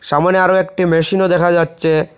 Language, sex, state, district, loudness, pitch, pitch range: Bengali, male, Assam, Hailakandi, -14 LUFS, 175 Hz, 165-185 Hz